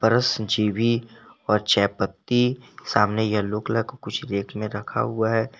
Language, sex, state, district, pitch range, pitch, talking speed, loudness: Hindi, male, Jharkhand, Garhwa, 105-120 Hz, 110 Hz, 150 wpm, -23 LUFS